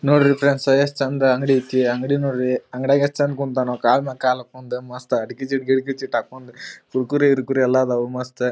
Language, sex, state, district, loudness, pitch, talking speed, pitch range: Kannada, male, Karnataka, Dharwad, -20 LUFS, 130 Hz, 185 wpm, 125-140 Hz